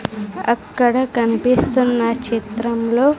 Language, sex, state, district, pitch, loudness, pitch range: Telugu, female, Andhra Pradesh, Sri Satya Sai, 235 Hz, -18 LUFS, 230-250 Hz